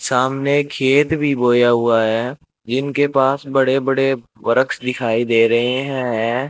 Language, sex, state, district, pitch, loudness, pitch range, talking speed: Hindi, male, Rajasthan, Bikaner, 130 Hz, -17 LUFS, 120-135 Hz, 140 wpm